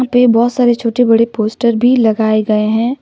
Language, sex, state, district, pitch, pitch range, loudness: Hindi, female, Jharkhand, Deoghar, 230 Hz, 220-245 Hz, -12 LUFS